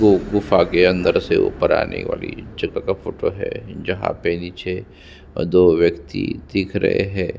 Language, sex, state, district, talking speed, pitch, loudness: Hindi, male, Chhattisgarh, Sukma, 160 wpm, 95 Hz, -19 LUFS